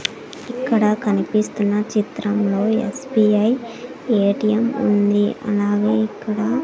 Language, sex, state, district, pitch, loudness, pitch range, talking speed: Telugu, female, Andhra Pradesh, Sri Satya Sai, 215 Hz, -19 LUFS, 205-230 Hz, 70 wpm